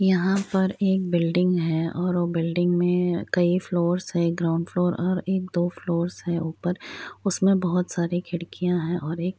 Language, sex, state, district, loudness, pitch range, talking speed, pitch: Hindi, female, Bihar, Muzaffarpur, -24 LUFS, 170-180 Hz, 180 wpm, 175 Hz